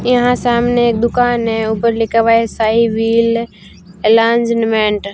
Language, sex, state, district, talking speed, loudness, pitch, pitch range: Hindi, female, Rajasthan, Barmer, 150 wpm, -13 LUFS, 230 Hz, 225-235 Hz